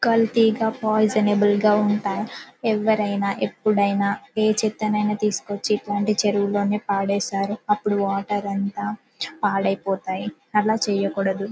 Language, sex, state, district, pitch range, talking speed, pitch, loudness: Telugu, female, Telangana, Karimnagar, 200-215 Hz, 95 wpm, 205 Hz, -22 LUFS